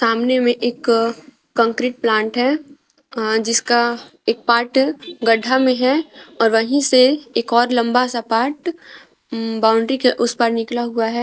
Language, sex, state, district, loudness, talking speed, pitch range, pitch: Hindi, female, Jharkhand, Garhwa, -17 LUFS, 145 wpm, 230-260 Hz, 240 Hz